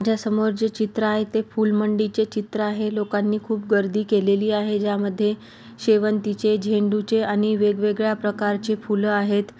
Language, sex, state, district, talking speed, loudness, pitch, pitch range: Marathi, female, Maharashtra, Pune, 130 wpm, -22 LUFS, 210 Hz, 205-215 Hz